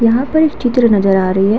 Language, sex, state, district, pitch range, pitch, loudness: Hindi, female, Uttar Pradesh, Hamirpur, 195-250 Hz, 230 Hz, -13 LUFS